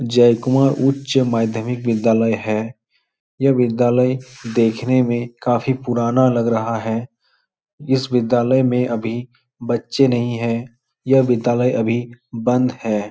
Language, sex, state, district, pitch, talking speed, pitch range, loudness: Hindi, male, Bihar, Supaul, 120 Hz, 120 wpm, 115-130 Hz, -18 LUFS